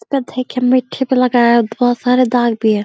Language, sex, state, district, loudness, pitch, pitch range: Hindi, female, Uttar Pradesh, Deoria, -14 LUFS, 250 Hz, 235-255 Hz